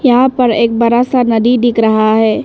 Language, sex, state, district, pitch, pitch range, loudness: Hindi, female, Arunachal Pradesh, Lower Dibang Valley, 235 Hz, 225-245 Hz, -11 LUFS